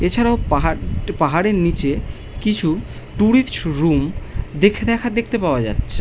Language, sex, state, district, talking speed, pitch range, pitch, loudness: Bengali, male, West Bengal, Malda, 130 wpm, 145-225 Hz, 175 Hz, -19 LUFS